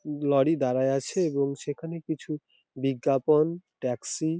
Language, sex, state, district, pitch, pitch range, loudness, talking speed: Bengali, male, West Bengal, Dakshin Dinajpur, 145 Hz, 135-165 Hz, -27 LUFS, 125 wpm